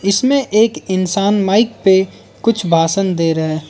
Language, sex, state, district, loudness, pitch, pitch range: Hindi, male, Arunachal Pradesh, Lower Dibang Valley, -15 LUFS, 195 Hz, 170-210 Hz